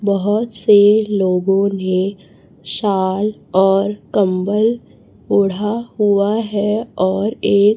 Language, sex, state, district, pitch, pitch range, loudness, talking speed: Hindi, female, Chhattisgarh, Raipur, 205 Hz, 195-210 Hz, -16 LUFS, 95 wpm